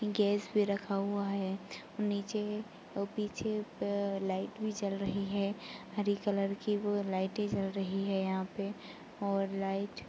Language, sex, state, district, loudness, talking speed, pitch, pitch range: Hindi, female, Chhattisgarh, Raigarh, -35 LUFS, 160 wpm, 200 Hz, 195-205 Hz